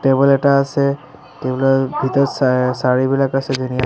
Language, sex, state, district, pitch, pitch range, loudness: Assamese, male, Assam, Sonitpur, 135 Hz, 130-140 Hz, -16 LUFS